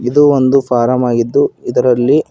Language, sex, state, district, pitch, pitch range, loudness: Kannada, male, Karnataka, Bidar, 125 Hz, 120-140 Hz, -12 LUFS